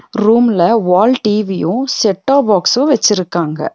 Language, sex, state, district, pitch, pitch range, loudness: Tamil, female, Tamil Nadu, Nilgiris, 215 Hz, 190-250 Hz, -12 LUFS